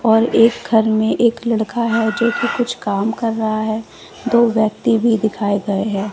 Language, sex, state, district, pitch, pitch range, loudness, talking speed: Hindi, female, Bihar, West Champaran, 225 Hz, 215-235 Hz, -17 LUFS, 195 wpm